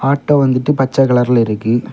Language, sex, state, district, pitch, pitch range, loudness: Tamil, male, Tamil Nadu, Kanyakumari, 130 Hz, 120-140 Hz, -14 LUFS